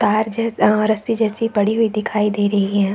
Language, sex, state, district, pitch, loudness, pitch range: Hindi, female, Chhattisgarh, Balrampur, 215 Hz, -18 LUFS, 205-225 Hz